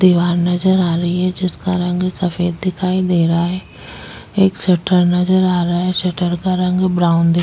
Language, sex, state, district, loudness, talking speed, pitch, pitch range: Hindi, female, Chhattisgarh, Jashpur, -16 LUFS, 195 wpm, 180 Hz, 175-185 Hz